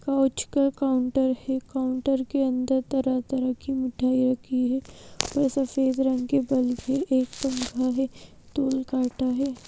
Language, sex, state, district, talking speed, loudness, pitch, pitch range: Hindi, female, Madhya Pradesh, Bhopal, 150 wpm, -26 LUFS, 265 Hz, 255-270 Hz